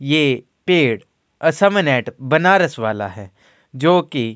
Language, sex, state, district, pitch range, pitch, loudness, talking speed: Hindi, female, Uttarakhand, Tehri Garhwal, 115-175 Hz, 145 Hz, -17 LUFS, 150 wpm